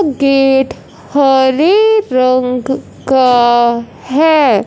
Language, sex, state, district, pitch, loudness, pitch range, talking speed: Hindi, male, Punjab, Fazilka, 265 Hz, -11 LUFS, 255-295 Hz, 65 wpm